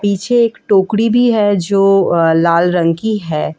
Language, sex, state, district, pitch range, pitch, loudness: Hindi, female, Delhi, New Delhi, 170-220 Hz, 195 Hz, -13 LUFS